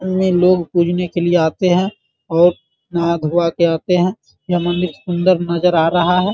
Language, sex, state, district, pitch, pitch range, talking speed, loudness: Hindi, male, Bihar, Muzaffarpur, 175 Hz, 170-180 Hz, 190 wpm, -16 LUFS